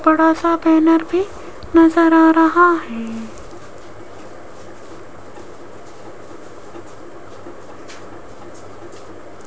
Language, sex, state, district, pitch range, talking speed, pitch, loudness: Hindi, female, Rajasthan, Jaipur, 320-335 Hz, 50 wpm, 325 Hz, -14 LUFS